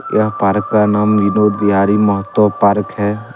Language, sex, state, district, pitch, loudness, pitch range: Hindi, male, Jharkhand, Deoghar, 105 Hz, -14 LUFS, 100-105 Hz